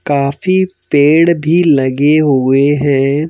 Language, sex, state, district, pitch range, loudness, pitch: Hindi, male, Madhya Pradesh, Bhopal, 140-165 Hz, -11 LUFS, 145 Hz